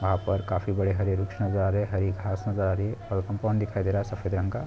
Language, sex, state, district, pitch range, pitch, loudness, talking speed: Hindi, male, Bihar, Jahanabad, 95-105 Hz, 100 Hz, -28 LUFS, 295 wpm